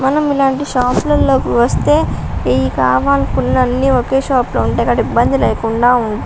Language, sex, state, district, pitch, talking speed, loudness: Telugu, female, Andhra Pradesh, Visakhapatnam, 245 Hz, 165 wpm, -14 LUFS